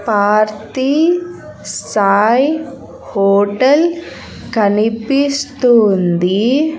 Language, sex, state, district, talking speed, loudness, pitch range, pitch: Telugu, female, Andhra Pradesh, Sri Satya Sai, 45 wpm, -14 LUFS, 205-285 Hz, 235 Hz